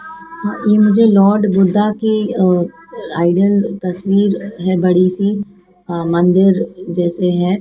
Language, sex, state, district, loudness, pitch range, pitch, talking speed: Hindi, female, Madhya Pradesh, Dhar, -14 LUFS, 180-205 Hz, 190 Hz, 120 wpm